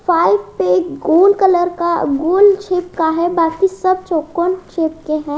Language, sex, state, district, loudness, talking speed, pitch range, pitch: Hindi, female, Haryana, Jhajjar, -15 LUFS, 145 wpm, 315-370 Hz, 340 Hz